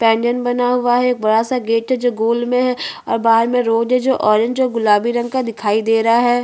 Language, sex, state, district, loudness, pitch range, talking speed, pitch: Hindi, female, Chhattisgarh, Bastar, -16 LUFS, 225-250 Hz, 225 wpm, 240 Hz